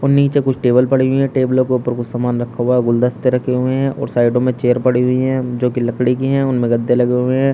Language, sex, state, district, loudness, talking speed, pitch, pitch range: Hindi, male, Uttar Pradesh, Shamli, -16 LUFS, 285 wpm, 125 Hz, 125-130 Hz